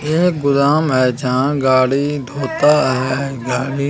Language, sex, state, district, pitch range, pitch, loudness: Hindi, male, Bihar, Araria, 130-145 Hz, 140 Hz, -16 LUFS